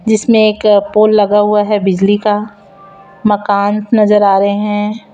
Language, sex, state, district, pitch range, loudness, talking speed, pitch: Hindi, female, Chhattisgarh, Raipur, 200-215 Hz, -11 LUFS, 150 wpm, 210 Hz